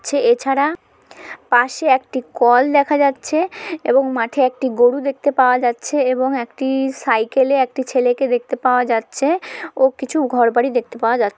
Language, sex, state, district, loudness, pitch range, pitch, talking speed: Bengali, female, West Bengal, Malda, -17 LUFS, 245-280 Hz, 260 Hz, 160 wpm